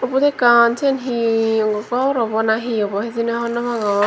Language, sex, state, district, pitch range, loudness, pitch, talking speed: Chakma, female, Tripura, Dhalai, 220-245 Hz, -18 LUFS, 235 Hz, 190 wpm